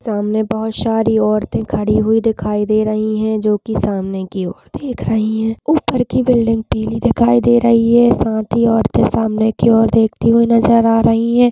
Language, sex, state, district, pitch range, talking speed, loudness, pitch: Hindi, female, Chhattisgarh, Balrampur, 215-235 Hz, 200 wpm, -15 LUFS, 225 Hz